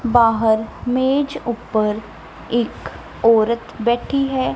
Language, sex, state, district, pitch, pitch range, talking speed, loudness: Punjabi, female, Punjab, Kapurthala, 235 Hz, 220-255 Hz, 90 wpm, -19 LUFS